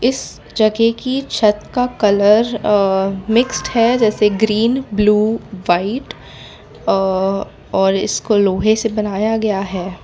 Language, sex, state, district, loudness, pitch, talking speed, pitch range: Hindi, female, Gujarat, Valsad, -16 LUFS, 210 Hz, 125 wpm, 195-230 Hz